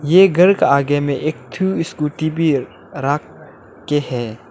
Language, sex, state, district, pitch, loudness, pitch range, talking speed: Hindi, male, Arunachal Pradesh, Lower Dibang Valley, 150 Hz, -17 LUFS, 140-165 Hz, 175 wpm